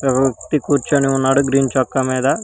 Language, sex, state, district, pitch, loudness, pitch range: Telugu, male, Telangana, Hyderabad, 135 Hz, -17 LUFS, 130-140 Hz